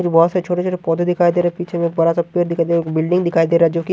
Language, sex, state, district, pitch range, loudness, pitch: Hindi, male, Haryana, Jhajjar, 165-175 Hz, -17 LUFS, 170 Hz